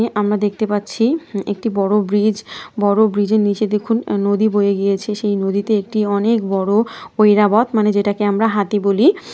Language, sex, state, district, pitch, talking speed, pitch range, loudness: Bengali, female, West Bengal, North 24 Parganas, 210 Hz, 175 wpm, 205-220 Hz, -17 LUFS